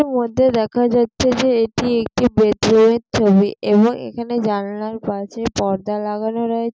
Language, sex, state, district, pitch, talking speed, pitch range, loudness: Bengali, female, West Bengal, Jalpaiguri, 230 Hz, 140 wpm, 210-240 Hz, -17 LUFS